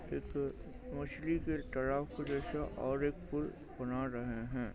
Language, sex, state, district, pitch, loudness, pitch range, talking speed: Hindi, male, Maharashtra, Chandrapur, 140 Hz, -39 LUFS, 125-150 Hz, 125 wpm